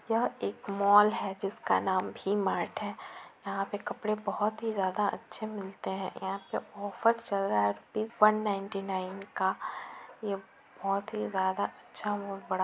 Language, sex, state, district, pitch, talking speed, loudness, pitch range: Hindi, female, Bihar, Gopalganj, 200 Hz, 170 wpm, -31 LUFS, 190-215 Hz